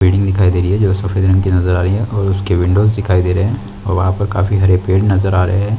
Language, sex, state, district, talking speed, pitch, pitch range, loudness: Hindi, male, Chhattisgarh, Sukma, 310 wpm, 95 Hz, 90-100 Hz, -14 LUFS